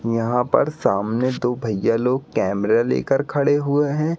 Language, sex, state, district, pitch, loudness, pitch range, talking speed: Hindi, male, Madhya Pradesh, Katni, 125 Hz, -20 LUFS, 110-140 Hz, 155 wpm